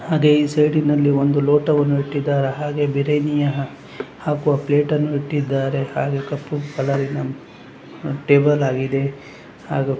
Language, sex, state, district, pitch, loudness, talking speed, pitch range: Kannada, male, Karnataka, Chamarajanagar, 145 Hz, -19 LUFS, 120 wpm, 140-150 Hz